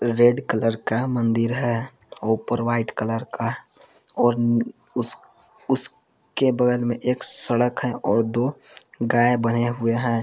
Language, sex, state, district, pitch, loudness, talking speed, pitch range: Hindi, male, Jharkhand, Palamu, 120 Hz, -20 LUFS, 150 wpm, 115-120 Hz